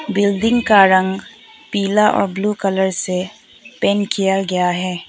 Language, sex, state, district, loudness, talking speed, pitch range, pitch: Hindi, female, Arunachal Pradesh, Papum Pare, -16 LUFS, 140 wpm, 185-205 Hz, 195 Hz